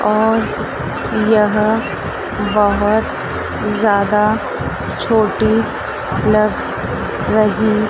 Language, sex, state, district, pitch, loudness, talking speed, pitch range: Hindi, female, Madhya Pradesh, Dhar, 215 Hz, -16 LUFS, 55 wpm, 210-220 Hz